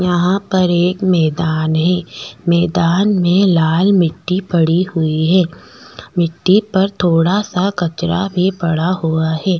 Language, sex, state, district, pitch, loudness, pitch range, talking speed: Hindi, female, Chhattisgarh, Bastar, 175 Hz, -15 LUFS, 165-185 Hz, 120 wpm